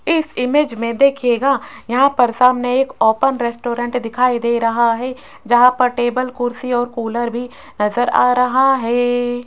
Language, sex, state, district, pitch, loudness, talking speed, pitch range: Hindi, female, Rajasthan, Jaipur, 245 Hz, -16 LUFS, 160 wpm, 240-255 Hz